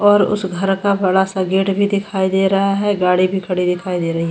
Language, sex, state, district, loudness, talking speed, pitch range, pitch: Hindi, female, Goa, North and South Goa, -17 LUFS, 280 wpm, 185-195 Hz, 190 Hz